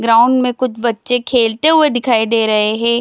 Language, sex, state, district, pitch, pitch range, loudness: Hindi, female, Chhattisgarh, Bilaspur, 235 Hz, 225-250 Hz, -14 LUFS